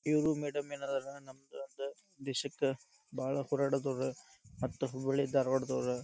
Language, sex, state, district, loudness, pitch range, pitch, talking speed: Kannada, male, Karnataka, Dharwad, -36 LUFS, 130-140 Hz, 135 Hz, 110 wpm